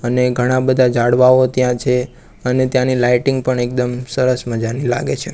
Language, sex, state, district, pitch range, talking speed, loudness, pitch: Gujarati, male, Gujarat, Gandhinagar, 125-130 Hz, 170 wpm, -16 LUFS, 125 Hz